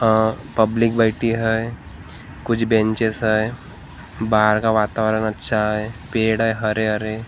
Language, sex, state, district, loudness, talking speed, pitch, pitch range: Hindi, male, Maharashtra, Gondia, -19 LUFS, 125 wpm, 110 Hz, 110-115 Hz